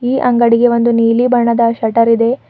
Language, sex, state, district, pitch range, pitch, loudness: Kannada, female, Karnataka, Bidar, 230-245 Hz, 235 Hz, -12 LUFS